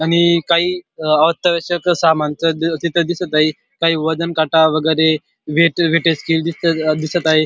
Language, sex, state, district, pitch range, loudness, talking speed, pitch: Marathi, male, Maharashtra, Dhule, 155-170 Hz, -16 LUFS, 95 wpm, 165 Hz